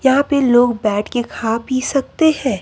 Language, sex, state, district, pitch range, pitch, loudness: Hindi, male, Uttar Pradesh, Lucknow, 230-275 Hz, 255 Hz, -16 LUFS